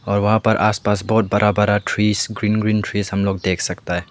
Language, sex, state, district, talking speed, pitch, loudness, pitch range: Hindi, male, Meghalaya, West Garo Hills, 235 wpm, 105 Hz, -18 LUFS, 100-110 Hz